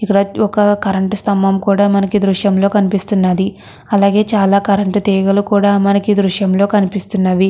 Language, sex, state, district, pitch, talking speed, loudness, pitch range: Telugu, female, Andhra Pradesh, Krishna, 200 Hz, 170 wpm, -13 LUFS, 195-205 Hz